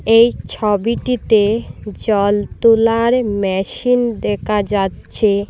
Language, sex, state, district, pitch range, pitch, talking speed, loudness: Bengali, female, Assam, Hailakandi, 200-230 Hz, 215 Hz, 75 wpm, -16 LUFS